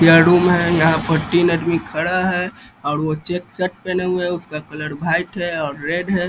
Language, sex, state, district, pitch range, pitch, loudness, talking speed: Hindi, male, Bihar, East Champaran, 160-180 Hz, 175 Hz, -18 LUFS, 210 wpm